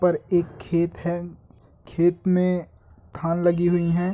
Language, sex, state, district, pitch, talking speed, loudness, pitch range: Hindi, male, Andhra Pradesh, Guntur, 170 Hz, 145 wpm, -23 LUFS, 130-175 Hz